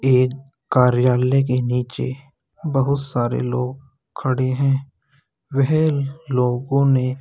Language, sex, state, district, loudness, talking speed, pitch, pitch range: Hindi, male, Uttar Pradesh, Jalaun, -20 LUFS, 115 wpm, 130 Hz, 125-140 Hz